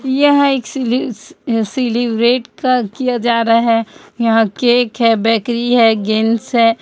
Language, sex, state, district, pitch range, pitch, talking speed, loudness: Hindi, female, Chhattisgarh, Raipur, 230-250 Hz, 235 Hz, 160 wpm, -14 LUFS